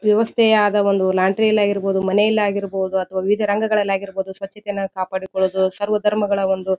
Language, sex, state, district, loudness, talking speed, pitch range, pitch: Kannada, female, Karnataka, Bijapur, -19 LUFS, 150 wpm, 190-210 Hz, 200 Hz